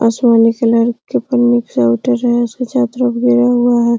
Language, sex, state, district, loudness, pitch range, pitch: Hindi, female, Uttar Pradesh, Hamirpur, -13 LUFS, 230-245 Hz, 240 Hz